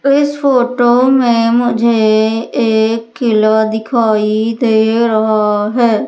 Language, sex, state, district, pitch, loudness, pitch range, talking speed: Hindi, female, Madhya Pradesh, Umaria, 230 Hz, -12 LUFS, 220-240 Hz, 100 wpm